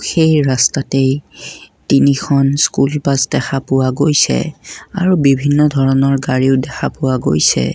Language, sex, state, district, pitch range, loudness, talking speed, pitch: Assamese, male, Assam, Kamrup Metropolitan, 135-145 Hz, -14 LUFS, 115 wpm, 135 Hz